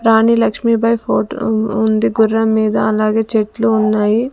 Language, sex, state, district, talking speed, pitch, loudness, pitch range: Telugu, female, Andhra Pradesh, Sri Satya Sai, 140 wpm, 220 Hz, -14 LUFS, 215-225 Hz